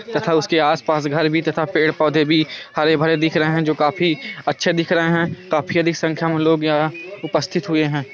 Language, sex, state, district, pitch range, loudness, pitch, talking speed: Hindi, male, Bihar, Muzaffarpur, 155-165 Hz, -18 LUFS, 160 Hz, 200 wpm